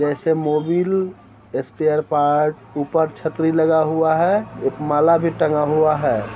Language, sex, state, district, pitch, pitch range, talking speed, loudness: Hindi, male, Bihar, Muzaffarpur, 155 Hz, 150-160 Hz, 140 wpm, -19 LUFS